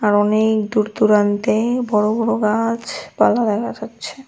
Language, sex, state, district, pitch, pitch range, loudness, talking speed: Bengali, female, Tripura, West Tripura, 215 Hz, 210-230 Hz, -17 LUFS, 125 wpm